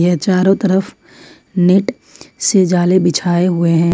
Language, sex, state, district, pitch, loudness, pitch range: Hindi, female, Jharkhand, Ranchi, 180 Hz, -14 LUFS, 175-190 Hz